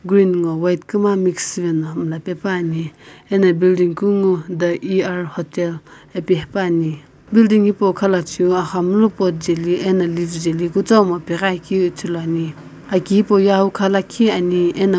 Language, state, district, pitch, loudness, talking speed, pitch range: Sumi, Nagaland, Kohima, 180 Hz, -17 LUFS, 110 wpm, 170-195 Hz